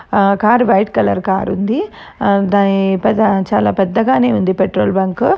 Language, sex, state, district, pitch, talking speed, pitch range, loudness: Telugu, female, Andhra Pradesh, Chittoor, 200 Hz, 155 wpm, 195-230 Hz, -14 LUFS